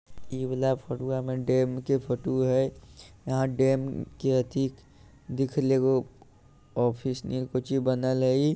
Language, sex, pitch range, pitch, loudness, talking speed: Bhojpuri, male, 130-135 Hz, 130 Hz, -28 LUFS, 155 wpm